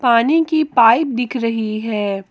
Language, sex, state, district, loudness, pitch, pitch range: Hindi, female, Jharkhand, Ranchi, -16 LUFS, 235 Hz, 220-265 Hz